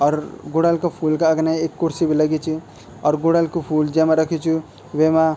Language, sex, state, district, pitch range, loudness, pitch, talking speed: Garhwali, male, Uttarakhand, Tehri Garhwal, 155-165 Hz, -19 LUFS, 160 Hz, 210 wpm